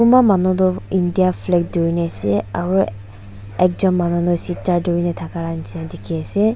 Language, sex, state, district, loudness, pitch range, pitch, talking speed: Nagamese, female, Nagaland, Dimapur, -18 LUFS, 165-185 Hz, 175 Hz, 155 wpm